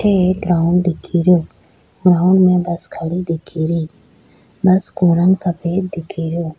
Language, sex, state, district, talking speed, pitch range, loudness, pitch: Rajasthani, female, Rajasthan, Churu, 145 wpm, 170-185 Hz, -16 LUFS, 175 Hz